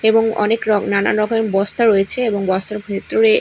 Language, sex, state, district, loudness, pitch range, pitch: Bengali, female, Odisha, Malkangiri, -16 LUFS, 200-225 Hz, 210 Hz